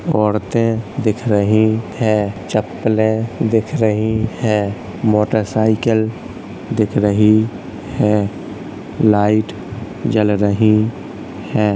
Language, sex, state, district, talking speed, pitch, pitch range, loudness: Hindi, male, Uttar Pradesh, Hamirpur, 80 wpm, 110 Hz, 105-110 Hz, -16 LUFS